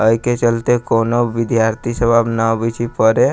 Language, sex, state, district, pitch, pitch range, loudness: Maithili, male, Bihar, Sitamarhi, 115 Hz, 115-120 Hz, -16 LUFS